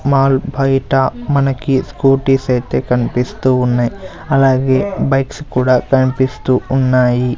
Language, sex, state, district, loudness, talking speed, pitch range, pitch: Telugu, male, Andhra Pradesh, Sri Satya Sai, -14 LUFS, 95 wpm, 125-135 Hz, 130 Hz